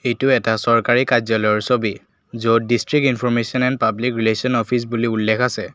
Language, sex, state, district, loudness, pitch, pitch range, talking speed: Assamese, male, Assam, Kamrup Metropolitan, -18 LUFS, 120 Hz, 110-125 Hz, 155 wpm